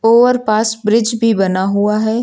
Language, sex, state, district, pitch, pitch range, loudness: Hindi, female, Uttar Pradesh, Lucknow, 220 Hz, 210-230 Hz, -14 LUFS